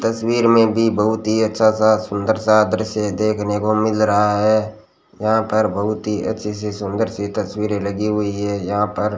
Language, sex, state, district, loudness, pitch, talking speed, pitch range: Hindi, male, Rajasthan, Bikaner, -18 LUFS, 105 Hz, 195 wpm, 105-110 Hz